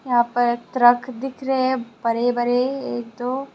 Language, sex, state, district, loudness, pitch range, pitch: Hindi, female, Tripura, West Tripura, -21 LUFS, 240-260 Hz, 245 Hz